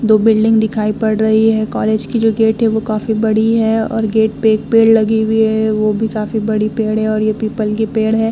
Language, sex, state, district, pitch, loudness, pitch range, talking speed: Hindi, female, Bihar, Vaishali, 220 Hz, -14 LUFS, 215-225 Hz, 250 wpm